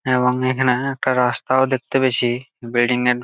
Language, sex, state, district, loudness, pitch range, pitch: Bengali, male, West Bengal, Jalpaiguri, -19 LUFS, 125-130 Hz, 125 Hz